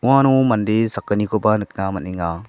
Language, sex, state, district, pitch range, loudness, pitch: Garo, male, Meghalaya, South Garo Hills, 95-115 Hz, -19 LUFS, 110 Hz